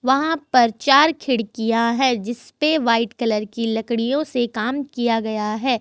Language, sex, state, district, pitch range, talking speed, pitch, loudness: Hindi, female, Jharkhand, Ranchi, 230-270 Hz, 165 wpm, 240 Hz, -20 LUFS